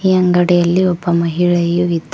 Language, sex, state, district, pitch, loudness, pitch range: Kannada, male, Karnataka, Koppal, 175 Hz, -14 LUFS, 170-180 Hz